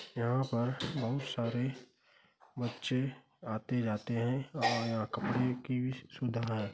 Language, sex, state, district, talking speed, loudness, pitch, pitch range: Hindi, male, Chhattisgarh, Bastar, 135 wpm, -35 LUFS, 125 Hz, 115-130 Hz